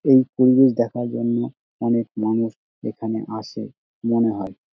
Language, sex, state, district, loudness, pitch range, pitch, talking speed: Bengali, male, West Bengal, Dakshin Dinajpur, -21 LUFS, 110-120 Hz, 115 Hz, 140 wpm